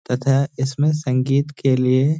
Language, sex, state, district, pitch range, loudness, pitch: Hindi, male, Uttarakhand, Uttarkashi, 130-145 Hz, -19 LUFS, 135 Hz